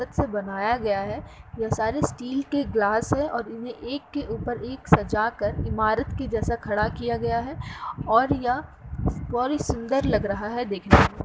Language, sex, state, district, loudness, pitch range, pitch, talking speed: Hindi, female, Uttar Pradesh, Muzaffarnagar, -25 LUFS, 210-250 Hz, 235 Hz, 185 wpm